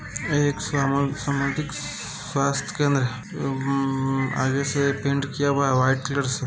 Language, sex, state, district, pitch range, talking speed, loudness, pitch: Hindi, male, Bihar, Saran, 135-140 Hz, 130 wpm, -24 LUFS, 140 Hz